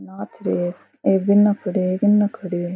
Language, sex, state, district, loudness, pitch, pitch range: Rajasthani, female, Rajasthan, Churu, -20 LUFS, 185 Hz, 175-205 Hz